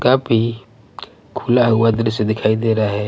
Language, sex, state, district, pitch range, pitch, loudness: Hindi, male, Punjab, Pathankot, 110-120 Hz, 115 Hz, -17 LUFS